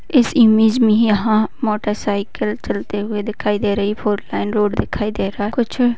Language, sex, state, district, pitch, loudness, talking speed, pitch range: Hindi, female, Bihar, Begusarai, 215 Hz, -18 LUFS, 190 wpm, 205-225 Hz